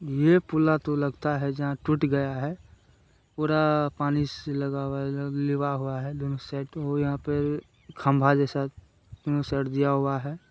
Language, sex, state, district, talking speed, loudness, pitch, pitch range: Hindi, male, Bihar, Jamui, 135 wpm, -27 LUFS, 140 Hz, 140-145 Hz